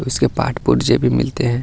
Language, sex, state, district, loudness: Hindi, male, Bihar, Gaya, -17 LUFS